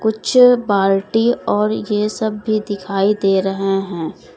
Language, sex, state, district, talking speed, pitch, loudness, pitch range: Hindi, female, Uttar Pradesh, Lalitpur, 135 wpm, 210 Hz, -17 LUFS, 195-220 Hz